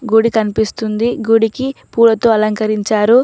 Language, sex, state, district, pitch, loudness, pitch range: Telugu, female, Telangana, Mahabubabad, 225 Hz, -14 LUFS, 215-235 Hz